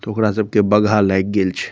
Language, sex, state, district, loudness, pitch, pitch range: Maithili, male, Bihar, Saharsa, -16 LUFS, 105 Hz, 100-110 Hz